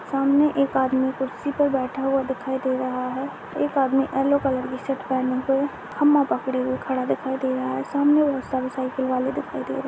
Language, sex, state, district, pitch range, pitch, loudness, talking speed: Hindi, female, Bihar, Madhepura, 255-275 Hz, 265 Hz, -23 LUFS, 215 wpm